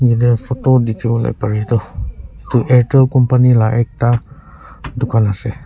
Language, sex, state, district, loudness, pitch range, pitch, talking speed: Nagamese, male, Nagaland, Kohima, -14 LUFS, 110-125 Hz, 120 Hz, 125 wpm